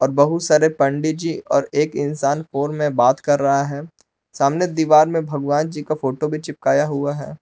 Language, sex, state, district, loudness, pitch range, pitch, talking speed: Hindi, male, Jharkhand, Palamu, -19 LUFS, 140-155 Hz, 145 Hz, 195 wpm